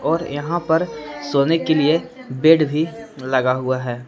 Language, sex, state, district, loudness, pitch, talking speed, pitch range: Hindi, male, Jharkhand, Palamu, -19 LUFS, 150 Hz, 160 wpm, 130-165 Hz